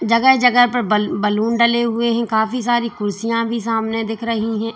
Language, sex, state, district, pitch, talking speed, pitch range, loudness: Hindi, female, Uttar Pradesh, Lalitpur, 230 Hz, 200 wpm, 220-235 Hz, -17 LUFS